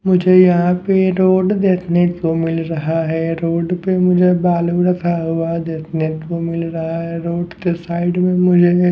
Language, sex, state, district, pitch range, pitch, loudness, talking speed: Hindi, male, Haryana, Jhajjar, 165-180 Hz, 175 Hz, -16 LUFS, 175 wpm